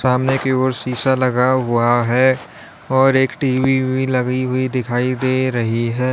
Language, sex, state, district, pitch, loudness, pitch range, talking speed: Hindi, male, Uttar Pradesh, Lalitpur, 130 Hz, -17 LUFS, 125-130 Hz, 165 wpm